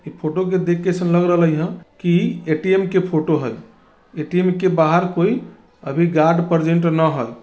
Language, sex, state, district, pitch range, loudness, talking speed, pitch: Bajjika, male, Bihar, Vaishali, 160-185 Hz, -18 LUFS, 195 wpm, 175 Hz